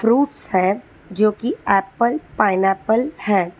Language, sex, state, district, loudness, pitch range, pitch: Hindi, female, Telangana, Hyderabad, -19 LUFS, 195-235 Hz, 210 Hz